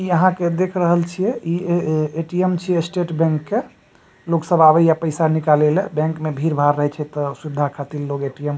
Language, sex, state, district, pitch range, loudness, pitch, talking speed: Maithili, male, Bihar, Supaul, 150-175 Hz, -19 LUFS, 160 Hz, 215 wpm